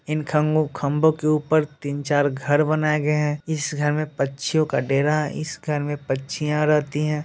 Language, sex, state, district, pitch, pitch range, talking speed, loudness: Hindi, male, Bihar, Muzaffarpur, 150 Hz, 145-155 Hz, 175 wpm, -22 LUFS